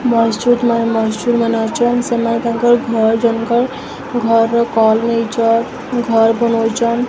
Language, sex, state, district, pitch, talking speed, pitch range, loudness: Odia, female, Odisha, Sambalpur, 230 Hz, 145 wpm, 230-240 Hz, -15 LUFS